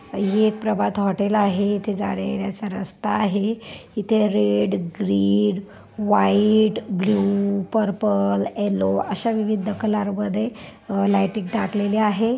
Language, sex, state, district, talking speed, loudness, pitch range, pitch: Marathi, male, Maharashtra, Pune, 110 wpm, -21 LUFS, 195-215 Hz, 205 Hz